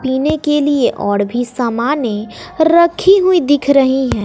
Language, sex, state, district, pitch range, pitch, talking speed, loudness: Hindi, female, Bihar, West Champaran, 245-310 Hz, 275 Hz, 155 wpm, -13 LUFS